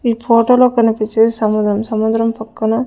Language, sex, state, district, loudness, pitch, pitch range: Telugu, female, Andhra Pradesh, Sri Satya Sai, -14 LUFS, 225 Hz, 220-230 Hz